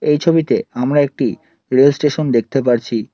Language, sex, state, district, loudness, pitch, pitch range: Bengali, male, West Bengal, Alipurduar, -16 LUFS, 140 Hz, 125-150 Hz